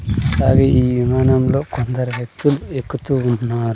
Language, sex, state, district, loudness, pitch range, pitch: Telugu, male, Andhra Pradesh, Sri Satya Sai, -17 LUFS, 120-135 Hz, 130 Hz